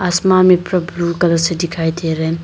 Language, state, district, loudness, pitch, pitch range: Hindi, Arunachal Pradesh, Lower Dibang Valley, -15 LUFS, 170 Hz, 165-180 Hz